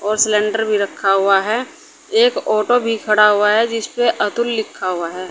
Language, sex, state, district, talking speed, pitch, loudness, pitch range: Hindi, female, Uttar Pradesh, Saharanpur, 190 wpm, 215 Hz, -16 LUFS, 205-235 Hz